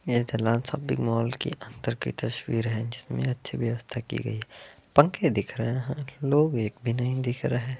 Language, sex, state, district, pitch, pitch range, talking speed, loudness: Hindi, male, Uttar Pradesh, Varanasi, 120 Hz, 115-135 Hz, 185 wpm, -28 LUFS